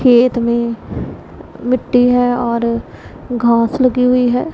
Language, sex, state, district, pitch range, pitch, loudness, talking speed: Hindi, female, Punjab, Pathankot, 235-250 Hz, 245 Hz, -15 LUFS, 120 wpm